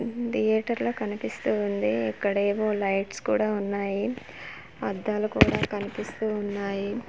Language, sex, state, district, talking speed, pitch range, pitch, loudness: Telugu, female, Andhra Pradesh, Manyam, 110 wpm, 200-215 Hz, 205 Hz, -27 LUFS